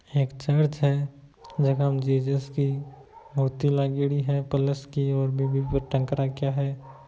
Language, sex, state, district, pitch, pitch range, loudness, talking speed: Hindi, male, Rajasthan, Nagaur, 140 Hz, 135-140 Hz, -26 LUFS, 160 wpm